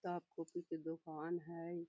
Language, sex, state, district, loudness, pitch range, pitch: Magahi, female, Bihar, Gaya, -46 LUFS, 165-175 Hz, 170 Hz